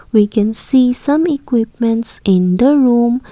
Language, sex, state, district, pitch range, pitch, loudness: English, female, Assam, Kamrup Metropolitan, 220-260 Hz, 235 Hz, -13 LUFS